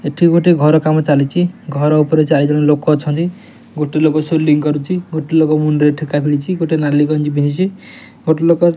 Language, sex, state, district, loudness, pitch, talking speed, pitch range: Odia, male, Odisha, Nuapada, -14 LUFS, 155 Hz, 180 wpm, 150-170 Hz